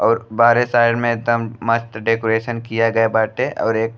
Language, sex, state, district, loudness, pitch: Bhojpuri, male, Uttar Pradesh, Deoria, -18 LUFS, 115 Hz